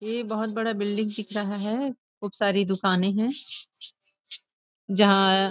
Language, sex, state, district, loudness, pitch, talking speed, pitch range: Hindi, female, Chhattisgarh, Rajnandgaon, -25 LUFS, 210 Hz, 140 wpm, 200-225 Hz